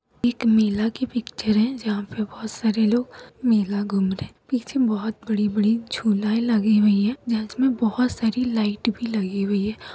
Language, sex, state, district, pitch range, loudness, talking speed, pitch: Hindi, female, Bihar, Begusarai, 210-235 Hz, -23 LUFS, 175 wpm, 220 Hz